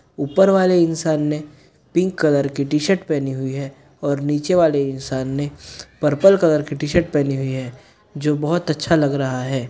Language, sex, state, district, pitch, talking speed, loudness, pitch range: Hindi, male, Bihar, Gopalganj, 150 Hz, 180 wpm, -19 LUFS, 140-165 Hz